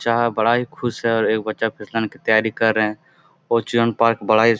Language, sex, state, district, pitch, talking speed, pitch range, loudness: Hindi, male, Bihar, Jamui, 115 Hz, 260 wpm, 110-115 Hz, -19 LUFS